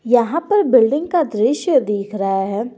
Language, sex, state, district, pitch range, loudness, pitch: Hindi, female, Jharkhand, Garhwa, 210-315 Hz, -17 LUFS, 245 Hz